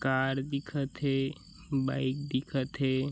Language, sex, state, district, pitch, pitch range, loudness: Chhattisgarhi, male, Chhattisgarh, Bilaspur, 135 Hz, 130-140 Hz, -32 LUFS